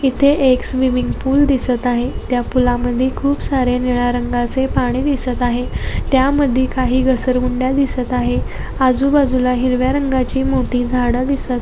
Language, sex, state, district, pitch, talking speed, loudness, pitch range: Marathi, female, Maharashtra, Sindhudurg, 255 Hz, 135 wpm, -16 LUFS, 250-265 Hz